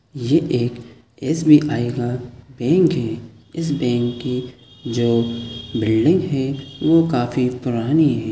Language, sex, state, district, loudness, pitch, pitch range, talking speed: Hindi, male, Chhattisgarh, Sukma, -19 LUFS, 125 Hz, 120-145 Hz, 130 wpm